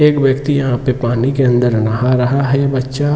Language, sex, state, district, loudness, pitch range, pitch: Hindi, male, Jharkhand, Jamtara, -14 LUFS, 125-140 Hz, 130 Hz